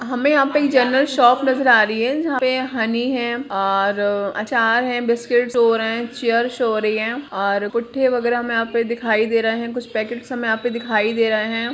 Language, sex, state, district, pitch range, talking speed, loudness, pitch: Hindi, female, Bihar, Jamui, 225-250 Hz, 235 wpm, -19 LUFS, 235 Hz